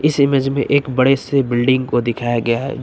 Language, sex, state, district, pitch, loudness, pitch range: Hindi, male, Uttar Pradesh, Lucknow, 130 Hz, -16 LUFS, 120-140 Hz